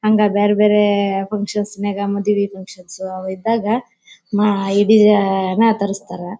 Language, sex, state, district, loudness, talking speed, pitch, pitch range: Kannada, female, Karnataka, Bellary, -17 LUFS, 105 wpm, 205 Hz, 195-210 Hz